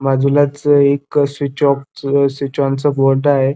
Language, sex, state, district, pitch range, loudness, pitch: Marathi, male, Maharashtra, Dhule, 140-145 Hz, -15 LUFS, 140 Hz